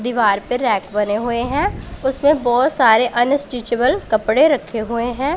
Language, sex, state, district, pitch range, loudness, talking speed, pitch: Hindi, female, Punjab, Pathankot, 225-275 Hz, -17 LUFS, 145 wpm, 245 Hz